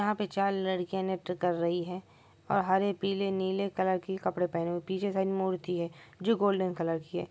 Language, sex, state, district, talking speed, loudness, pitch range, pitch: Maithili, male, Bihar, Supaul, 215 wpm, -31 LUFS, 180-195 Hz, 190 Hz